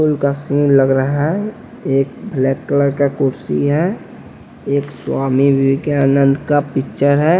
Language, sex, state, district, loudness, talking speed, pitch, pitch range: Hindi, male, Bihar, West Champaran, -16 LUFS, 140 wpm, 140 Hz, 135-145 Hz